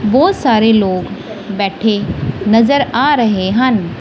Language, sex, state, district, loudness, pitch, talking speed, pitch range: Punjabi, female, Punjab, Kapurthala, -13 LUFS, 220 Hz, 120 wpm, 200-240 Hz